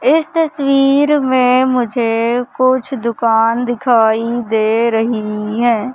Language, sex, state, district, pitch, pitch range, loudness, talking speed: Hindi, male, Madhya Pradesh, Katni, 240 Hz, 230-260 Hz, -14 LUFS, 100 wpm